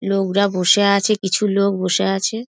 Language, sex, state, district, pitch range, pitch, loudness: Bengali, female, West Bengal, Dakshin Dinajpur, 190-200 Hz, 200 Hz, -17 LUFS